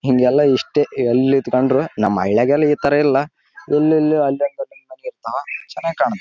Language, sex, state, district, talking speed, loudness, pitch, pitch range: Kannada, male, Karnataka, Raichur, 105 wpm, -17 LUFS, 145 Hz, 130-155 Hz